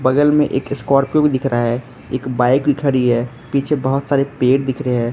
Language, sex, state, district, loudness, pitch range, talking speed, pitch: Hindi, male, Arunachal Pradesh, Lower Dibang Valley, -17 LUFS, 125-140 Hz, 210 wpm, 130 Hz